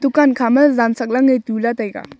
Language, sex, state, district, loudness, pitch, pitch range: Wancho, female, Arunachal Pradesh, Longding, -15 LUFS, 245 Hz, 235-270 Hz